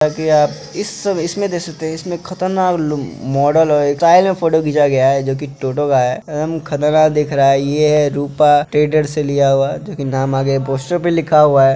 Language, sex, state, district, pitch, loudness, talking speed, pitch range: Maithili, male, Bihar, Begusarai, 150 Hz, -15 LUFS, 215 wpm, 140-165 Hz